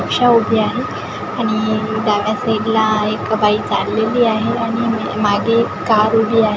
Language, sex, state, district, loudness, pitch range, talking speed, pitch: Marathi, female, Maharashtra, Sindhudurg, -16 LUFS, 215-225 Hz, 135 wpm, 220 Hz